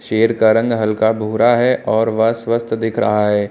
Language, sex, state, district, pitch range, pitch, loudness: Hindi, male, Uttar Pradesh, Lucknow, 110-115 Hz, 110 Hz, -16 LUFS